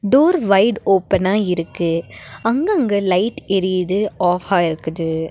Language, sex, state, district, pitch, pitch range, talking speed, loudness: Tamil, female, Tamil Nadu, Nilgiris, 195 Hz, 175-210 Hz, 100 wpm, -18 LUFS